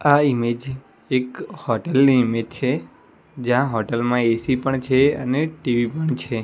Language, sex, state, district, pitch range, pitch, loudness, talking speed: Gujarati, male, Gujarat, Gandhinagar, 120-135 Hz, 125 Hz, -21 LUFS, 160 wpm